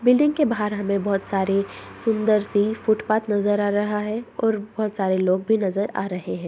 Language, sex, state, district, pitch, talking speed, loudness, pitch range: Hindi, female, Bihar, Begusarai, 210 Hz, 185 wpm, -22 LUFS, 195-220 Hz